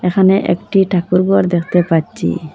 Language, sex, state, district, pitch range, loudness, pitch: Bengali, female, Assam, Hailakandi, 175-190 Hz, -14 LUFS, 180 Hz